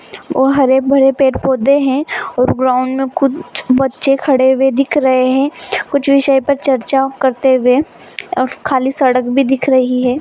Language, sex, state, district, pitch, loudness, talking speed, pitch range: Hindi, female, Bihar, Begusarai, 270 Hz, -13 LUFS, 160 wpm, 260-275 Hz